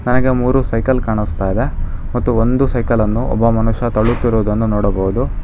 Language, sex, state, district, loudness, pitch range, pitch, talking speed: Kannada, male, Karnataka, Bangalore, -16 LUFS, 105-125 Hz, 115 Hz, 145 wpm